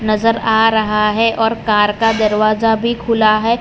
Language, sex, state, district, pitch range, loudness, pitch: Hindi, male, Gujarat, Valsad, 215-225 Hz, -14 LUFS, 220 Hz